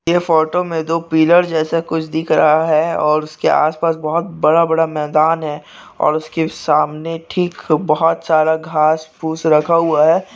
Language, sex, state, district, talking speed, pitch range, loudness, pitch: Hindi, male, Chhattisgarh, Bastar, 160 wpm, 155-165 Hz, -15 LUFS, 160 Hz